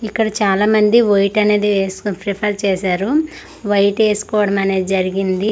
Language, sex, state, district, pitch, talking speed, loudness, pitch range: Telugu, female, Andhra Pradesh, Manyam, 205 Hz, 130 wpm, -16 LUFS, 195-215 Hz